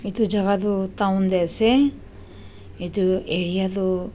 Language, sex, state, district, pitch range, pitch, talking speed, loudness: Nagamese, female, Nagaland, Dimapur, 175-200 Hz, 190 Hz, 130 wpm, -19 LUFS